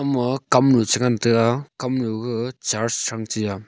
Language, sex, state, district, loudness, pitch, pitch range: Wancho, male, Arunachal Pradesh, Longding, -21 LUFS, 120 Hz, 115-130 Hz